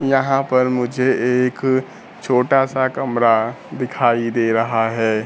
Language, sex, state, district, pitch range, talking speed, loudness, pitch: Hindi, male, Bihar, Kaimur, 115-130 Hz, 125 wpm, -18 LUFS, 125 Hz